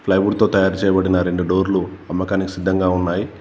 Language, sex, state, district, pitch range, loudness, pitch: Telugu, male, Telangana, Komaram Bheem, 90-95 Hz, -18 LUFS, 95 Hz